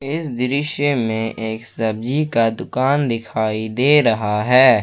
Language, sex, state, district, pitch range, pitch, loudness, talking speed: Hindi, male, Jharkhand, Ranchi, 110-140 Hz, 120 Hz, -18 LUFS, 135 wpm